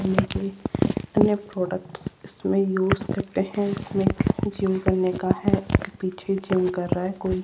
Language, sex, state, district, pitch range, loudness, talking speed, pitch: Hindi, female, Rajasthan, Jaipur, 185-195 Hz, -24 LUFS, 135 wpm, 190 Hz